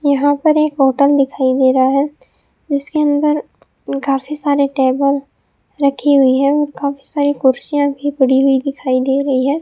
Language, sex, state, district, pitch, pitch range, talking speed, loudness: Hindi, female, Rajasthan, Bikaner, 280 Hz, 270-290 Hz, 170 wpm, -15 LUFS